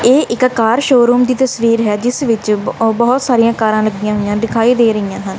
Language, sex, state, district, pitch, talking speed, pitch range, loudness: Punjabi, female, Punjab, Kapurthala, 230 Hz, 200 wpm, 215-245 Hz, -13 LUFS